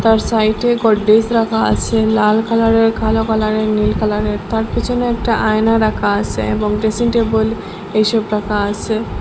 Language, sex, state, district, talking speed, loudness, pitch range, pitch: Bengali, female, Assam, Hailakandi, 150 wpm, -15 LUFS, 210-225 Hz, 220 Hz